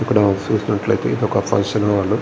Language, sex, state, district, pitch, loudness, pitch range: Telugu, male, Andhra Pradesh, Visakhapatnam, 105 Hz, -18 LUFS, 100-110 Hz